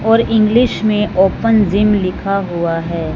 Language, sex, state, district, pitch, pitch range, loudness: Hindi, male, Punjab, Fazilka, 205 Hz, 185-220 Hz, -14 LUFS